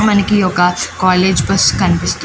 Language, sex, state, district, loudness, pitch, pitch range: Telugu, male, Andhra Pradesh, Srikakulam, -13 LUFS, 185 Hz, 180-200 Hz